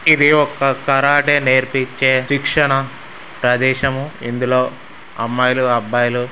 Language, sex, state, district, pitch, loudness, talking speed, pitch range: Telugu, male, Andhra Pradesh, Srikakulam, 130 Hz, -16 LUFS, 85 wpm, 125-140 Hz